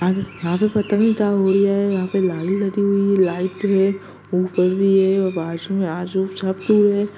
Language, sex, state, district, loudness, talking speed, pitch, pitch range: Hindi, female, Bihar, Darbhanga, -19 LUFS, 165 wpm, 195 Hz, 185-200 Hz